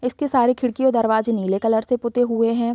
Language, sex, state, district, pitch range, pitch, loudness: Hindi, female, Bihar, Sitamarhi, 225-250 Hz, 235 Hz, -20 LUFS